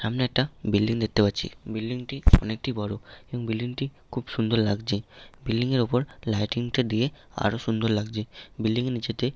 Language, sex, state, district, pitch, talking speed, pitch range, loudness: Bengali, male, West Bengal, Malda, 115 Hz, 175 wpm, 110-125 Hz, -27 LUFS